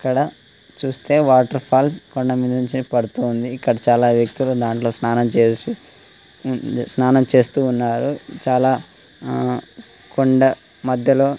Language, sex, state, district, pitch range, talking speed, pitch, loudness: Telugu, male, Telangana, Nalgonda, 120-130 Hz, 105 wpm, 130 Hz, -18 LUFS